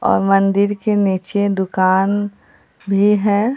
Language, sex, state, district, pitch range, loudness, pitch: Hindi, female, Bihar, Katihar, 195-205 Hz, -16 LUFS, 200 Hz